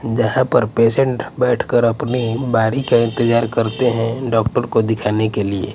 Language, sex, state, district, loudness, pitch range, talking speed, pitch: Hindi, male, Punjab, Pathankot, -17 LUFS, 110-125 Hz, 155 wpm, 115 Hz